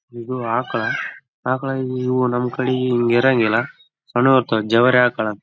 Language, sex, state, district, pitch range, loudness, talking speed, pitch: Kannada, male, Karnataka, Raichur, 120-130 Hz, -19 LUFS, 65 wpm, 125 Hz